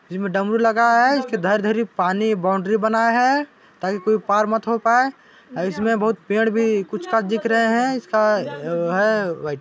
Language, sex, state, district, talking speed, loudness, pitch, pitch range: Chhattisgarhi, male, Chhattisgarh, Balrampur, 180 wpm, -19 LUFS, 220 Hz, 200-230 Hz